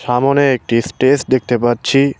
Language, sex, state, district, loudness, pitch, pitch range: Bengali, male, West Bengal, Cooch Behar, -14 LUFS, 130 Hz, 120-140 Hz